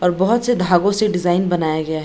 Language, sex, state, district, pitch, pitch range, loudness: Hindi, female, Bihar, Samastipur, 180 Hz, 175-200 Hz, -17 LUFS